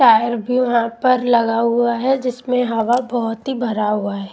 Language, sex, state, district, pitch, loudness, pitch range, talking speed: Hindi, female, Odisha, Malkangiri, 235 Hz, -18 LUFS, 225-250 Hz, 195 wpm